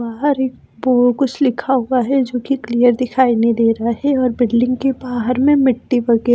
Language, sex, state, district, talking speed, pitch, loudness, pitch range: Hindi, female, Himachal Pradesh, Shimla, 200 wpm, 250 Hz, -16 LUFS, 240-265 Hz